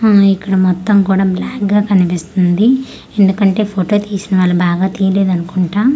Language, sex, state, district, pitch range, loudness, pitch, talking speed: Telugu, female, Andhra Pradesh, Manyam, 185-205 Hz, -13 LUFS, 195 Hz, 130 wpm